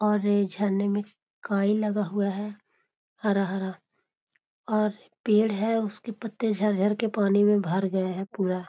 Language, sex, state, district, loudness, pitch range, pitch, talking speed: Magahi, female, Bihar, Gaya, -26 LUFS, 195-210 Hz, 205 Hz, 145 wpm